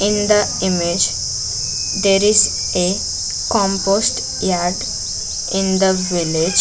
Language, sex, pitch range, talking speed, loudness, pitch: English, female, 170-195 Hz, 100 wpm, -16 LUFS, 190 Hz